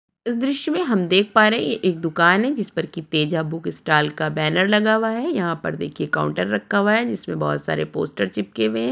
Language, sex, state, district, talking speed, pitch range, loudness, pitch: Hindi, female, Maharashtra, Chandrapur, 255 wpm, 150-215 Hz, -20 LUFS, 170 Hz